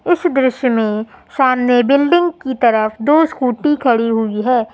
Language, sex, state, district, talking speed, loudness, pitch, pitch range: Hindi, female, Uttar Pradesh, Lucknow, 150 wpm, -15 LUFS, 255 Hz, 230-295 Hz